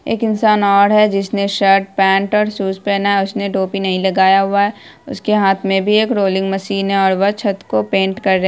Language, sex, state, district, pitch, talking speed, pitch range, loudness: Hindi, female, Bihar, Saharsa, 195 Hz, 225 wpm, 195-205 Hz, -15 LUFS